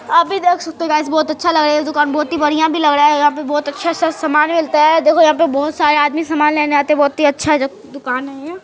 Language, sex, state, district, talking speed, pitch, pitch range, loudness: Hindi, female, Uttar Pradesh, Budaun, 290 wpm, 305 Hz, 295-325 Hz, -14 LUFS